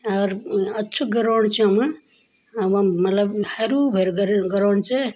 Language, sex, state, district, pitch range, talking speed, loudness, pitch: Garhwali, female, Uttarakhand, Tehri Garhwal, 200-235 Hz, 165 wpm, -20 LUFS, 210 Hz